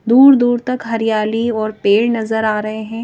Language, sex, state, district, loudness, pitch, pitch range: Hindi, female, Madhya Pradesh, Bhopal, -15 LUFS, 225 Hz, 215-235 Hz